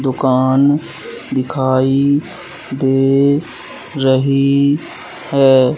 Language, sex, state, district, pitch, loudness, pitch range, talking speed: Hindi, male, Madhya Pradesh, Katni, 135 Hz, -14 LUFS, 130-140 Hz, 50 wpm